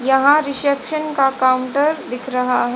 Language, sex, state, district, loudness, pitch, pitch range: Hindi, female, Haryana, Charkhi Dadri, -17 LUFS, 270 Hz, 255-290 Hz